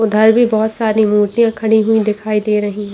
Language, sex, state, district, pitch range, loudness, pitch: Hindi, female, Chhattisgarh, Bastar, 210-220 Hz, -14 LUFS, 220 Hz